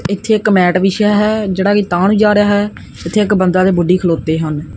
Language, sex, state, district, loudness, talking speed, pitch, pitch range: Punjabi, male, Punjab, Kapurthala, -13 LUFS, 240 wpm, 195 Hz, 180-210 Hz